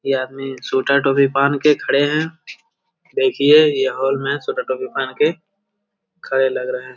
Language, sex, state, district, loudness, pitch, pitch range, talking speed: Hindi, male, Bihar, Jamui, -18 LUFS, 140 Hz, 135-185 Hz, 170 wpm